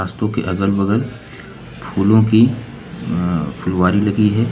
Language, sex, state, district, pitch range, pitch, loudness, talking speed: Hindi, male, Uttar Pradesh, Lucknow, 90-115 Hz, 105 Hz, -17 LUFS, 135 wpm